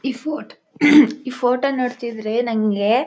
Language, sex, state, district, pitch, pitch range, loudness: Kannada, female, Karnataka, Chamarajanagar, 250 Hz, 235-275 Hz, -18 LUFS